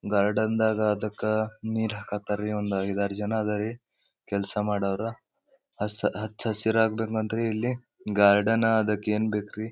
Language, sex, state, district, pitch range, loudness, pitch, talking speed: Kannada, male, Karnataka, Bijapur, 105-110 Hz, -27 LUFS, 110 Hz, 110 wpm